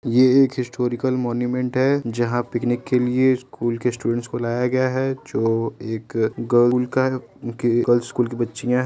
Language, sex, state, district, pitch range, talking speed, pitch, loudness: Hindi, male, Uttar Pradesh, Varanasi, 120-130 Hz, 170 wpm, 120 Hz, -21 LUFS